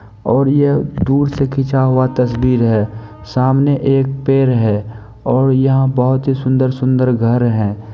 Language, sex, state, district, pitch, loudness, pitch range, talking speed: Maithili, male, Bihar, Supaul, 130 Hz, -14 LUFS, 115-135 Hz, 145 wpm